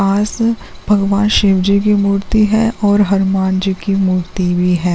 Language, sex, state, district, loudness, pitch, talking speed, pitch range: Hindi, female, Uttarakhand, Uttarkashi, -14 LUFS, 195 Hz, 180 wpm, 190-210 Hz